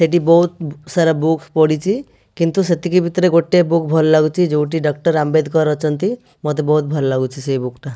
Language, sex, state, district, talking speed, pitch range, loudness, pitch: Odia, male, Odisha, Malkangiri, 175 wpm, 150-170 Hz, -16 LUFS, 160 Hz